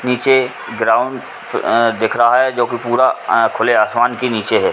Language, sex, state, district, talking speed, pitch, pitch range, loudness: Hindi, male, Uttar Pradesh, Ghazipur, 190 wpm, 120 Hz, 115-125 Hz, -15 LUFS